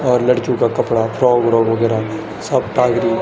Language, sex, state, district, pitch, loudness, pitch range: Garhwali, male, Uttarakhand, Tehri Garhwal, 120 Hz, -16 LUFS, 115-125 Hz